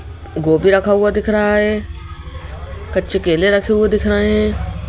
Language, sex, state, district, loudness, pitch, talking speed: Hindi, female, Madhya Pradesh, Bhopal, -15 LUFS, 195 Hz, 160 wpm